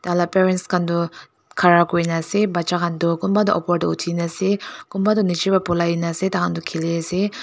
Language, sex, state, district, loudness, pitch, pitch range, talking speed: Nagamese, female, Nagaland, Dimapur, -20 LUFS, 175 Hz, 170-195 Hz, 235 wpm